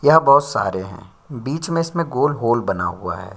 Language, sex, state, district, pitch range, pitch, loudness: Hindi, male, Bihar, Bhagalpur, 95-145 Hz, 120 Hz, -19 LUFS